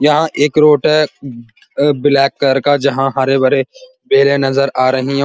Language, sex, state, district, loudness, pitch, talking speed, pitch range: Hindi, male, Uttar Pradesh, Muzaffarnagar, -13 LUFS, 140 Hz, 230 wpm, 135-150 Hz